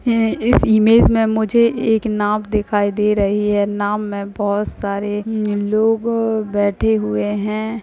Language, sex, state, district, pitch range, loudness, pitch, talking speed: Hindi, female, Bihar, Jahanabad, 205-220 Hz, -17 LUFS, 210 Hz, 155 wpm